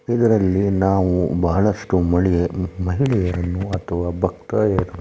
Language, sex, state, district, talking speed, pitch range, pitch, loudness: Kannada, male, Karnataka, Shimoga, 95 wpm, 90-100 Hz, 95 Hz, -19 LUFS